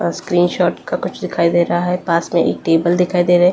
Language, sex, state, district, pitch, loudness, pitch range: Hindi, female, Delhi, New Delhi, 175 Hz, -16 LUFS, 170-180 Hz